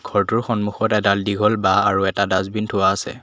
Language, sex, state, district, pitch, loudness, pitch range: Assamese, male, Assam, Kamrup Metropolitan, 100 Hz, -19 LUFS, 95-105 Hz